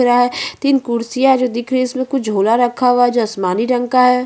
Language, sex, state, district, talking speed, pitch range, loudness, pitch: Hindi, female, Chhattisgarh, Bastar, 255 wpm, 235-255 Hz, -15 LUFS, 245 Hz